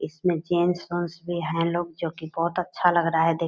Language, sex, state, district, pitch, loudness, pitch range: Hindi, female, Bihar, Purnia, 170 Hz, -25 LUFS, 165-175 Hz